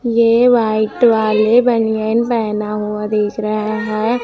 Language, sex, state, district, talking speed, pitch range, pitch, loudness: Hindi, female, Chhattisgarh, Raipur, 125 wpm, 215-230 Hz, 220 Hz, -15 LUFS